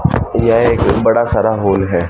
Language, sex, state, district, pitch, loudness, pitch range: Hindi, male, Haryana, Rohtak, 115 Hz, -13 LUFS, 95-115 Hz